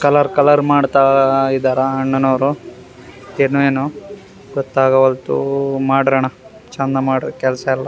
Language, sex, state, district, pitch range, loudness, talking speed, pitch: Kannada, male, Karnataka, Raichur, 130-140 Hz, -15 LUFS, 100 wpm, 135 Hz